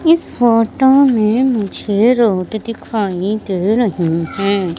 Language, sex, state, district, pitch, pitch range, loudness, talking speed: Hindi, female, Madhya Pradesh, Katni, 215 Hz, 195-240 Hz, -15 LUFS, 115 wpm